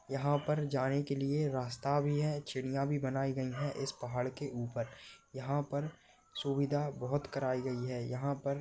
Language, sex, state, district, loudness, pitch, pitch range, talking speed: Hindi, male, Maharashtra, Nagpur, -36 LUFS, 140 Hz, 130-145 Hz, 180 wpm